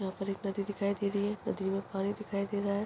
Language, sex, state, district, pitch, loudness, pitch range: Hindi, female, Chhattisgarh, Korba, 200 Hz, -34 LUFS, 195-205 Hz